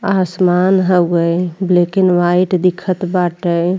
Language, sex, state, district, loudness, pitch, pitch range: Bhojpuri, female, Uttar Pradesh, Ghazipur, -14 LUFS, 180 Hz, 175-185 Hz